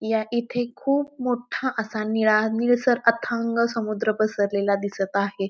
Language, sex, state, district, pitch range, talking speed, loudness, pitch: Marathi, female, Maharashtra, Pune, 215-245 Hz, 130 wpm, -23 LUFS, 225 Hz